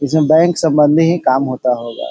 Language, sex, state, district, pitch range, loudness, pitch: Hindi, male, Bihar, Sitamarhi, 130-160 Hz, -13 LUFS, 150 Hz